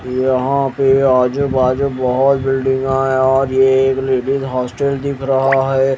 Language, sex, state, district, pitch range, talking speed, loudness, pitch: Hindi, male, Odisha, Malkangiri, 130-135 Hz, 140 wpm, -15 LUFS, 135 Hz